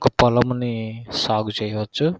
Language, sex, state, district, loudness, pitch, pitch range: Telugu, male, Andhra Pradesh, Krishna, -21 LUFS, 115 Hz, 110-125 Hz